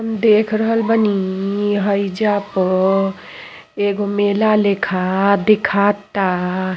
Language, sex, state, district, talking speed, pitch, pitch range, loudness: Bhojpuri, female, Uttar Pradesh, Ghazipur, 95 wpm, 200 Hz, 195-210 Hz, -17 LUFS